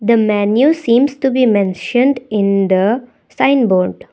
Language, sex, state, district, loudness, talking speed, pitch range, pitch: English, female, Assam, Kamrup Metropolitan, -14 LUFS, 145 wpm, 200-260 Hz, 230 Hz